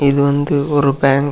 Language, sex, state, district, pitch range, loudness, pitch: Tamil, male, Tamil Nadu, Kanyakumari, 140-145 Hz, -15 LUFS, 140 Hz